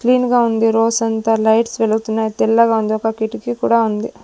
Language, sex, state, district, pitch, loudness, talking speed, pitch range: Telugu, female, Andhra Pradesh, Sri Satya Sai, 225 Hz, -16 LUFS, 170 wpm, 220-230 Hz